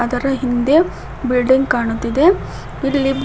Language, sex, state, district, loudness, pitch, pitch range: Kannada, female, Karnataka, Koppal, -16 LUFS, 260 Hz, 245-275 Hz